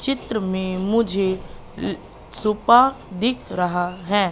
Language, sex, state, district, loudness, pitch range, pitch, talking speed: Hindi, female, Madhya Pradesh, Katni, -21 LUFS, 185-230 Hz, 200 Hz, 95 wpm